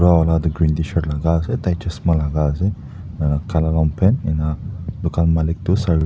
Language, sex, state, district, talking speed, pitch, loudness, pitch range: Nagamese, male, Nagaland, Dimapur, 180 wpm, 80 Hz, -19 LUFS, 80-90 Hz